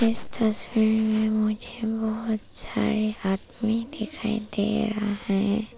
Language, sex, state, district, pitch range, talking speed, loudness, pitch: Hindi, female, Arunachal Pradesh, Papum Pare, 215-220 Hz, 115 wpm, -23 LUFS, 220 Hz